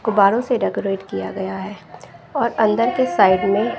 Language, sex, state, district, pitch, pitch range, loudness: Hindi, female, Bihar, West Champaran, 210 Hz, 195-235 Hz, -19 LUFS